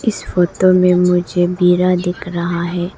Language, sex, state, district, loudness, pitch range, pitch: Hindi, female, Arunachal Pradesh, Lower Dibang Valley, -15 LUFS, 175-180 Hz, 180 Hz